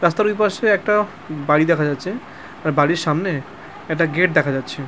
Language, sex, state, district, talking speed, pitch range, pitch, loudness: Bengali, male, West Bengal, Purulia, 170 wpm, 150-205 Hz, 170 Hz, -19 LUFS